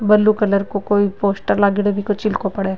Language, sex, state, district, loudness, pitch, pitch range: Rajasthani, female, Rajasthan, Nagaur, -17 LUFS, 205 Hz, 200-210 Hz